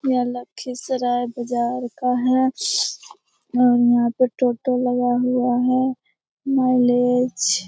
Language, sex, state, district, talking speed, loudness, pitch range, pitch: Hindi, female, Bihar, Lakhisarai, 110 wpm, -20 LUFS, 245-255 Hz, 250 Hz